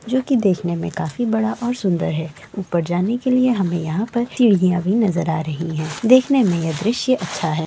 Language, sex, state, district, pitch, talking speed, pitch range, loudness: Maithili, female, Bihar, Sitamarhi, 190 Hz, 220 wpm, 165-240 Hz, -19 LUFS